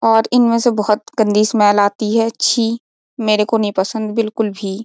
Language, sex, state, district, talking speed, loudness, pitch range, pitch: Hindi, female, Uttar Pradesh, Jyotiba Phule Nagar, 185 wpm, -16 LUFS, 210-230 Hz, 220 Hz